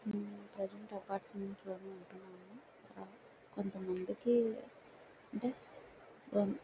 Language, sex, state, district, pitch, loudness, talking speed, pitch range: Telugu, female, Andhra Pradesh, Guntur, 205 Hz, -40 LUFS, 70 wpm, 195-225 Hz